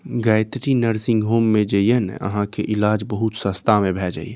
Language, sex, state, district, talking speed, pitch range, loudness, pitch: Maithili, male, Bihar, Saharsa, 220 wpm, 105-115 Hz, -20 LUFS, 105 Hz